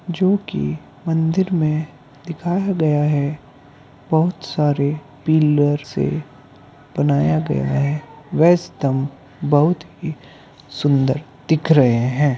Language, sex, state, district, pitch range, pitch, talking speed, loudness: Hindi, male, Uttar Pradesh, Hamirpur, 140-160 Hz, 145 Hz, 100 wpm, -19 LUFS